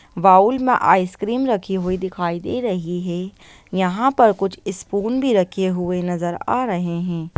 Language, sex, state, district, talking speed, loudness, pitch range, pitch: Hindi, female, Bihar, Lakhisarai, 160 wpm, -19 LUFS, 180-210 Hz, 185 Hz